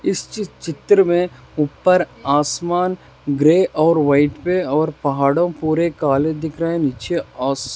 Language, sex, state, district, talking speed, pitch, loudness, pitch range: Hindi, male, Rajasthan, Nagaur, 155 wpm, 160 Hz, -18 LUFS, 145-175 Hz